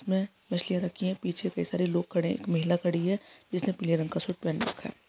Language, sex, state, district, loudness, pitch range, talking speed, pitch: Hindi, female, Jharkhand, Sahebganj, -30 LUFS, 175-190 Hz, 250 wpm, 180 Hz